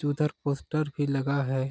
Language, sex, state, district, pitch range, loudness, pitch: Hindi, male, Chhattisgarh, Sarguja, 135-145 Hz, -29 LUFS, 145 Hz